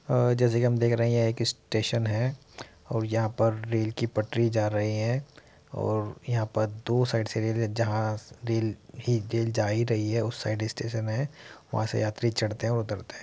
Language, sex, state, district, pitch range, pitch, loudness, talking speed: Hindi, male, Uttar Pradesh, Muzaffarnagar, 110-120 Hz, 115 Hz, -28 LUFS, 200 wpm